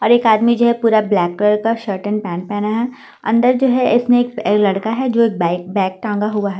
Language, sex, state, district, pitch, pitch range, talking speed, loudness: Hindi, female, Delhi, New Delhi, 215 Hz, 205-235 Hz, 255 wpm, -16 LUFS